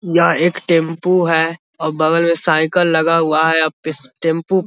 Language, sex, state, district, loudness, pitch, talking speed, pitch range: Hindi, male, Bihar, Vaishali, -15 LUFS, 165 Hz, 190 wpm, 160-170 Hz